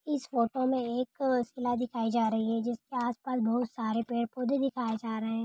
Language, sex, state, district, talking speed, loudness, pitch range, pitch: Hindi, female, Uttar Pradesh, Hamirpur, 220 wpm, -31 LUFS, 230-255 Hz, 240 Hz